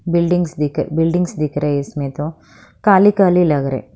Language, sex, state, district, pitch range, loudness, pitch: Hindi, female, Haryana, Charkhi Dadri, 145-175 Hz, -16 LUFS, 155 Hz